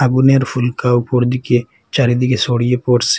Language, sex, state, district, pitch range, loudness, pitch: Bengali, male, Assam, Hailakandi, 120-130 Hz, -15 LUFS, 125 Hz